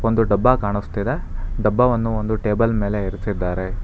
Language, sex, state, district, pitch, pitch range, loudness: Kannada, male, Karnataka, Bangalore, 105 Hz, 100-115 Hz, -20 LUFS